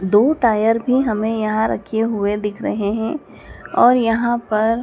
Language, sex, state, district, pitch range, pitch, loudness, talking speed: Hindi, male, Madhya Pradesh, Dhar, 215-235 Hz, 225 Hz, -18 LUFS, 175 wpm